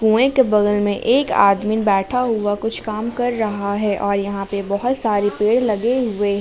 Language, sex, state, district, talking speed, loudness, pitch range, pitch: Hindi, female, Jharkhand, Palamu, 205 wpm, -18 LUFS, 200-235 Hz, 210 Hz